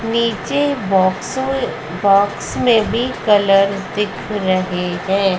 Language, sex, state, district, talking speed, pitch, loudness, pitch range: Hindi, female, Madhya Pradesh, Dhar, 100 wpm, 200 Hz, -17 LUFS, 190-230 Hz